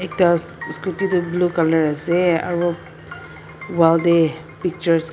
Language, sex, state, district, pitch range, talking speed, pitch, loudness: Nagamese, female, Nagaland, Dimapur, 165-175 Hz, 130 wpm, 170 Hz, -19 LUFS